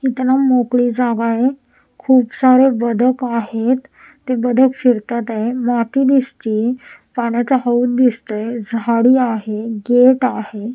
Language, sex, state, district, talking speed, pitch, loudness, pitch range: Marathi, female, Maharashtra, Washim, 125 wpm, 245 Hz, -16 LUFS, 230-255 Hz